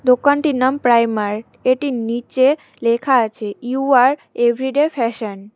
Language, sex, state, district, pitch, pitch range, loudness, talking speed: Bengali, female, West Bengal, Cooch Behar, 250 Hz, 230-265 Hz, -17 LUFS, 130 wpm